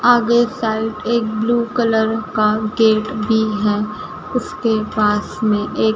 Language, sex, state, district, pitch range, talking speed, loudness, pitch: Hindi, female, Madhya Pradesh, Dhar, 215-230 Hz, 140 wpm, -18 LUFS, 220 Hz